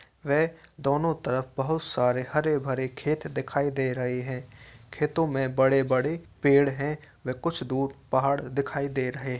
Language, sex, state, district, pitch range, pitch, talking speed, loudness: Hindi, male, Uttar Pradesh, Varanasi, 130-150 Hz, 135 Hz, 165 wpm, -27 LUFS